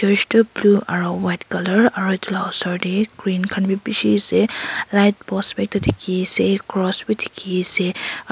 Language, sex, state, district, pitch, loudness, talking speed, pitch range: Nagamese, female, Nagaland, Kohima, 195 Hz, -19 LUFS, 175 wpm, 185-205 Hz